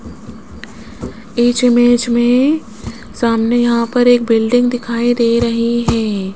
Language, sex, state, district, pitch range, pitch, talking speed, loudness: Hindi, female, Rajasthan, Jaipur, 230-245 Hz, 235 Hz, 115 wpm, -14 LUFS